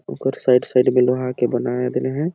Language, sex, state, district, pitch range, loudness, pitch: Awadhi, male, Chhattisgarh, Balrampur, 125-130 Hz, -19 LUFS, 125 Hz